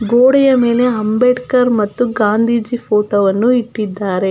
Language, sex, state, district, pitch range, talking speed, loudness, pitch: Kannada, female, Karnataka, Belgaum, 210-250 Hz, 110 wpm, -14 LUFS, 230 Hz